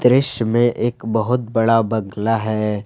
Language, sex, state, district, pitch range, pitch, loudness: Hindi, male, Jharkhand, Palamu, 110-120 Hz, 115 Hz, -18 LUFS